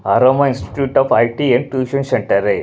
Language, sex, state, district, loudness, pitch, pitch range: Hindi, male, Punjab, Pathankot, -15 LUFS, 135 Hz, 125-140 Hz